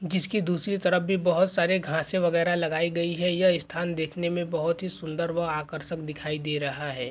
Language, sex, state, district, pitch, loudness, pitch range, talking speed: Hindi, male, Bihar, Begusarai, 170 Hz, -27 LUFS, 160-180 Hz, 205 wpm